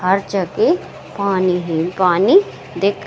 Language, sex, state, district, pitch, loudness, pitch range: Hindi, female, Bihar, Saran, 185 Hz, -17 LUFS, 175-200 Hz